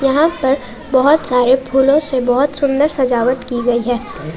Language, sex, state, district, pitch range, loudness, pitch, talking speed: Hindi, female, Jharkhand, Palamu, 245-285 Hz, -14 LUFS, 265 Hz, 165 wpm